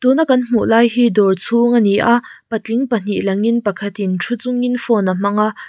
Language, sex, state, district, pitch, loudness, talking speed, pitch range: Mizo, female, Mizoram, Aizawl, 230 Hz, -16 LUFS, 180 wpm, 205-240 Hz